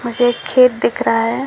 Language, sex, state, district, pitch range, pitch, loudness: Hindi, male, Maharashtra, Solapur, 235-255 Hz, 245 Hz, -15 LUFS